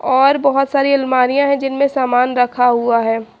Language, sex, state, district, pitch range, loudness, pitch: Hindi, female, Haryana, Charkhi Dadri, 245-275 Hz, -15 LUFS, 260 Hz